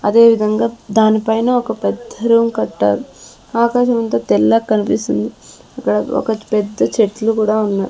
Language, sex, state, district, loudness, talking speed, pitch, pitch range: Telugu, female, Andhra Pradesh, Sri Satya Sai, -15 LUFS, 115 wpm, 215 Hz, 190-230 Hz